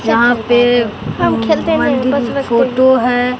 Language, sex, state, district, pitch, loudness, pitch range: Hindi, male, Bihar, Katihar, 245 Hz, -13 LUFS, 235-255 Hz